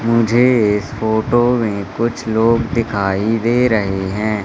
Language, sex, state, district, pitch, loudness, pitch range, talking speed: Hindi, male, Madhya Pradesh, Katni, 110 Hz, -16 LUFS, 105-115 Hz, 135 wpm